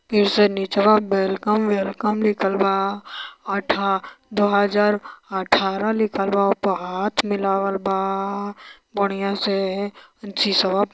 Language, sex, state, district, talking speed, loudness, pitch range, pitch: Bhojpuri, male, Uttar Pradesh, Varanasi, 115 wpm, -21 LUFS, 195-205 Hz, 200 Hz